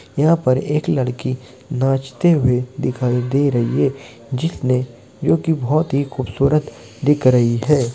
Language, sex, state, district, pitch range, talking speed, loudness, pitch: Hindi, male, Bihar, Muzaffarpur, 125-145 Hz, 145 wpm, -18 LUFS, 130 Hz